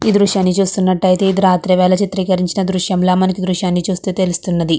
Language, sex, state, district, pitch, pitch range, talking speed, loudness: Telugu, female, Andhra Pradesh, Guntur, 185 Hz, 180-190 Hz, 165 wpm, -15 LUFS